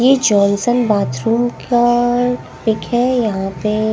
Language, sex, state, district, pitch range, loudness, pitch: Hindi, female, Punjab, Pathankot, 210-245 Hz, -16 LUFS, 235 Hz